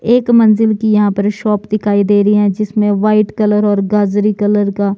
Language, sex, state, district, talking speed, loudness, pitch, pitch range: Hindi, male, Himachal Pradesh, Shimla, 205 wpm, -13 LUFS, 210 Hz, 205-215 Hz